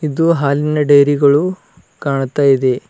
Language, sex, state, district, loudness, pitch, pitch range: Kannada, male, Karnataka, Bidar, -14 LUFS, 145 Hz, 140-150 Hz